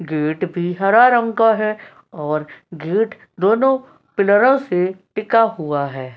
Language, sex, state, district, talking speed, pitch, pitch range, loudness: Hindi, female, Uttar Pradesh, Etah, 135 wpm, 195 Hz, 160-225 Hz, -17 LUFS